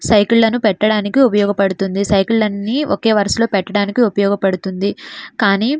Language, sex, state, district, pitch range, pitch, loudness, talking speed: Telugu, female, Andhra Pradesh, Srikakulam, 200-225 Hz, 205 Hz, -15 LUFS, 125 wpm